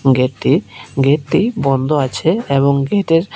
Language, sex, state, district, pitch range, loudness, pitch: Bengali, male, Tripura, West Tripura, 130-165 Hz, -15 LUFS, 140 Hz